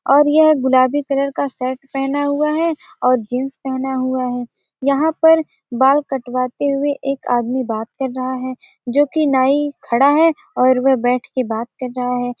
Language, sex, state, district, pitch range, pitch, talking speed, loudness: Hindi, female, Bihar, Gopalganj, 255-285 Hz, 265 Hz, 185 wpm, -17 LUFS